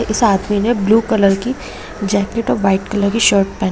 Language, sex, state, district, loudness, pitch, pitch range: Hindi, female, Bihar, Madhepura, -15 LUFS, 205 Hz, 200-225 Hz